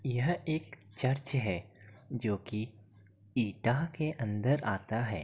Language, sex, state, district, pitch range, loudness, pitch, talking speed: Hindi, male, Uttar Pradesh, Etah, 105-135 Hz, -34 LUFS, 115 Hz, 125 wpm